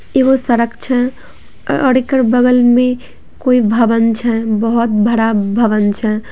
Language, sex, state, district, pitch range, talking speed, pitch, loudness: Maithili, female, Bihar, Samastipur, 225-250 Hz, 140 wpm, 235 Hz, -13 LUFS